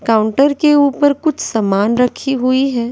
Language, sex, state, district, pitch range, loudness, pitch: Hindi, female, Bihar, West Champaran, 230-285 Hz, -14 LUFS, 260 Hz